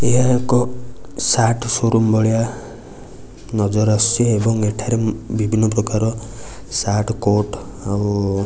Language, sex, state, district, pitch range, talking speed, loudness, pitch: Odia, male, Odisha, Nuapada, 105-115 Hz, 105 wpm, -18 LUFS, 110 Hz